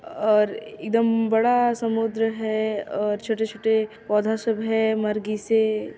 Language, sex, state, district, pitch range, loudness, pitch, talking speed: Chhattisgarhi, female, Chhattisgarh, Sarguja, 215-225 Hz, -23 LUFS, 220 Hz, 120 wpm